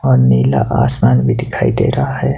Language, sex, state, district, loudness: Hindi, male, Himachal Pradesh, Shimla, -13 LUFS